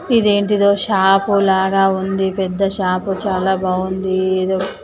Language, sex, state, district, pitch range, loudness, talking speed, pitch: Telugu, female, Telangana, Nalgonda, 190-200 Hz, -16 LUFS, 110 wpm, 190 Hz